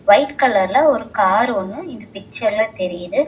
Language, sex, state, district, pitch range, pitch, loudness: Tamil, female, Tamil Nadu, Chennai, 195-280 Hz, 220 Hz, -17 LUFS